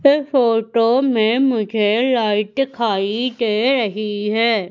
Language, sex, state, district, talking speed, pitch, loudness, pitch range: Hindi, female, Madhya Pradesh, Umaria, 115 wpm, 230 Hz, -17 LUFS, 215-255 Hz